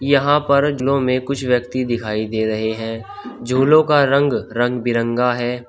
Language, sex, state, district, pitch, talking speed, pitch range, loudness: Hindi, male, Uttar Pradesh, Shamli, 125 Hz, 170 wpm, 115-140 Hz, -18 LUFS